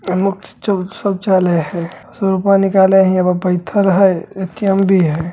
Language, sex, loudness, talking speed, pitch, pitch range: Bajjika, male, -15 LUFS, 145 wpm, 190 Hz, 180-195 Hz